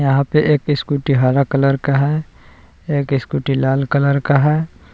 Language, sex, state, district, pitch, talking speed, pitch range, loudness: Hindi, male, Jharkhand, Palamu, 140 Hz, 170 wpm, 135-145 Hz, -16 LUFS